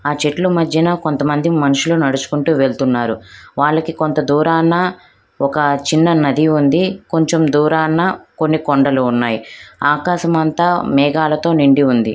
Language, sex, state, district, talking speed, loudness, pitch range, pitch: Telugu, female, Andhra Pradesh, Krishna, 115 wpm, -15 LUFS, 140-165 Hz, 155 Hz